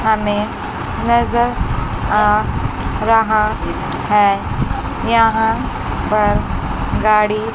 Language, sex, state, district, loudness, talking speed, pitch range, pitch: Hindi, female, Chandigarh, Chandigarh, -17 LUFS, 65 wpm, 210-225 Hz, 215 Hz